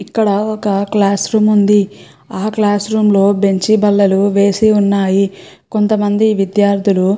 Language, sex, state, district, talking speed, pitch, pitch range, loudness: Telugu, female, Andhra Pradesh, Chittoor, 140 wpm, 205 Hz, 200-215 Hz, -13 LUFS